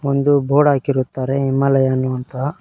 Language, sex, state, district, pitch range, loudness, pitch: Kannada, male, Karnataka, Koppal, 130-140 Hz, -17 LUFS, 135 Hz